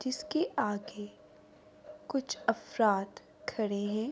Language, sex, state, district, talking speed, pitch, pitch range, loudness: Urdu, female, Andhra Pradesh, Anantapur, 85 wpm, 220 Hz, 205-280 Hz, -33 LUFS